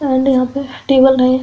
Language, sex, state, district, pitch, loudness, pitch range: Hindi, female, Uttar Pradesh, Hamirpur, 265 Hz, -13 LUFS, 255-270 Hz